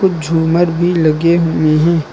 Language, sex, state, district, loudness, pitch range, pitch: Hindi, male, Uttar Pradesh, Lucknow, -13 LUFS, 160-170 Hz, 165 Hz